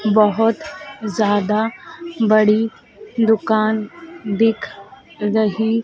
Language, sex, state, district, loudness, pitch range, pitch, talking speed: Hindi, female, Madhya Pradesh, Dhar, -18 LUFS, 210-225 Hz, 220 Hz, 60 wpm